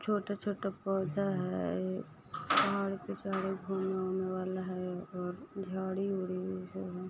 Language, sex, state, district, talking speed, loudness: Maithili, female, Bihar, Samastipur, 100 wpm, -36 LUFS